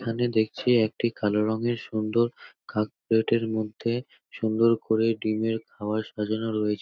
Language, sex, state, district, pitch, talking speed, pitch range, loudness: Bengali, male, West Bengal, North 24 Parganas, 110 Hz, 150 wpm, 110-115 Hz, -26 LUFS